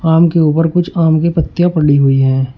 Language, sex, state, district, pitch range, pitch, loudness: Hindi, male, Uttar Pradesh, Shamli, 140-170 Hz, 160 Hz, -12 LUFS